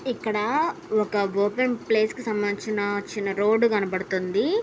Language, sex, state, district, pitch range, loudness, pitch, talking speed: Telugu, female, Andhra Pradesh, Anantapur, 205-235 Hz, -24 LUFS, 210 Hz, 115 wpm